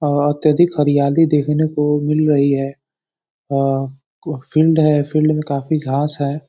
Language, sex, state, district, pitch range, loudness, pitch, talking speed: Hindi, male, Uttar Pradesh, Deoria, 140-155 Hz, -16 LUFS, 145 Hz, 150 wpm